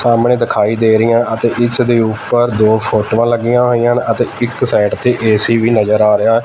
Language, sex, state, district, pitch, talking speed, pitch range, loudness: Punjabi, male, Punjab, Fazilka, 115 Hz, 205 wpm, 110-120 Hz, -12 LUFS